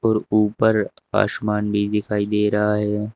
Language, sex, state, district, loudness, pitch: Hindi, male, Uttar Pradesh, Shamli, -20 LUFS, 105 Hz